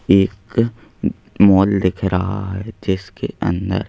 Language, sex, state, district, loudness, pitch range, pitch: Hindi, male, Madhya Pradesh, Bhopal, -18 LUFS, 95-100 Hz, 95 Hz